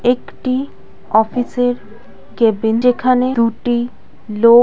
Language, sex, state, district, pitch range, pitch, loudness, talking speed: Bengali, female, West Bengal, Kolkata, 225-250 Hz, 240 Hz, -16 LUFS, 90 wpm